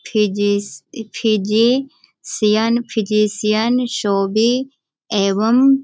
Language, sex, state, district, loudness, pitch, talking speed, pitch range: Hindi, female, Bihar, Sitamarhi, -17 LUFS, 220 Hz, 70 wpm, 210-245 Hz